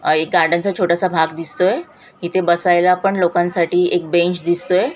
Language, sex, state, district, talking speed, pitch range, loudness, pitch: Marathi, female, Maharashtra, Mumbai Suburban, 170 wpm, 170-185 Hz, -17 LUFS, 175 Hz